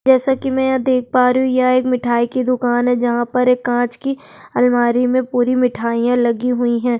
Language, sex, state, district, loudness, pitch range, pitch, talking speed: Hindi, female, Chhattisgarh, Sukma, -16 LUFS, 240-255 Hz, 250 Hz, 225 wpm